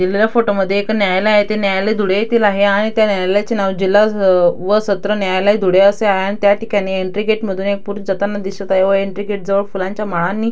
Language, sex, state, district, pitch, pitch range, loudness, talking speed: Marathi, female, Maharashtra, Dhule, 200 Hz, 195-210 Hz, -15 LUFS, 230 wpm